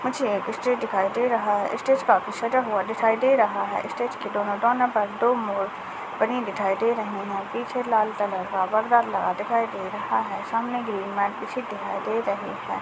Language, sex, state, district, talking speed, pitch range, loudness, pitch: Hindi, female, Chhattisgarh, Sarguja, 210 wpm, 200-240 Hz, -25 LUFS, 215 Hz